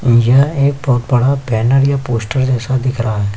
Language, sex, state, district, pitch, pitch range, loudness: Hindi, male, Chhattisgarh, Kabirdham, 130 Hz, 115-135 Hz, -14 LUFS